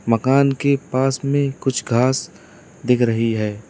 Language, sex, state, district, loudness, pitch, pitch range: Hindi, male, Uttar Pradesh, Lalitpur, -19 LUFS, 130 Hz, 115-140 Hz